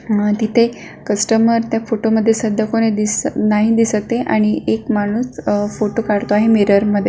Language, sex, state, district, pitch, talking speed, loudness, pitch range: Marathi, female, Maharashtra, Solapur, 215 Hz, 170 wpm, -16 LUFS, 205-225 Hz